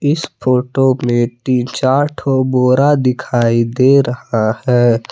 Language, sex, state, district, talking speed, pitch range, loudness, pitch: Hindi, male, Jharkhand, Palamu, 130 wpm, 120-135 Hz, -14 LUFS, 125 Hz